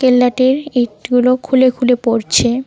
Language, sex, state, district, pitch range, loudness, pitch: Bengali, female, West Bengal, Cooch Behar, 245-255 Hz, -14 LUFS, 250 Hz